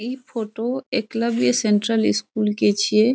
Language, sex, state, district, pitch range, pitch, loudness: Maithili, female, Bihar, Saharsa, 210-235 Hz, 225 Hz, -21 LUFS